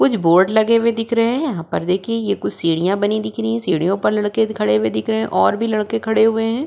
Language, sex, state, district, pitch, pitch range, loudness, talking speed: Hindi, female, Uttar Pradesh, Budaun, 215 Hz, 185-225 Hz, -18 LUFS, 280 wpm